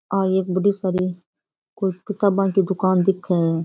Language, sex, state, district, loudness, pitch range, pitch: Rajasthani, female, Rajasthan, Churu, -21 LUFS, 185-195 Hz, 190 Hz